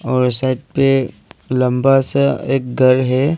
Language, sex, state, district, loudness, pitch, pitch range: Hindi, male, Arunachal Pradesh, Longding, -16 LUFS, 130 Hz, 130-135 Hz